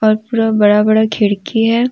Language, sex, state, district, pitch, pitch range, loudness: Hindi, female, Jharkhand, Deoghar, 220 Hz, 210-225 Hz, -13 LUFS